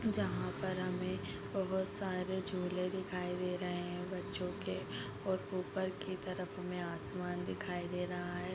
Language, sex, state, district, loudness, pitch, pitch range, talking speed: Hindi, female, Chhattisgarh, Bilaspur, -39 LUFS, 185 Hz, 180-190 Hz, 160 wpm